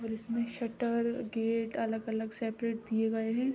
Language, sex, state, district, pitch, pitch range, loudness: Hindi, female, Jharkhand, Sahebganj, 225 Hz, 225-235 Hz, -34 LUFS